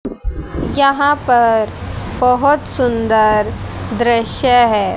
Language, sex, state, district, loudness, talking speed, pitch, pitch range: Hindi, female, Haryana, Jhajjar, -14 LUFS, 70 wpm, 240 Hz, 225-275 Hz